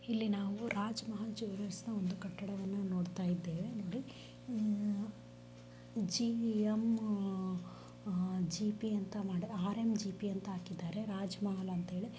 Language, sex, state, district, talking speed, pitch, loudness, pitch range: Kannada, female, Karnataka, Bellary, 65 wpm, 200 Hz, -39 LUFS, 180-215 Hz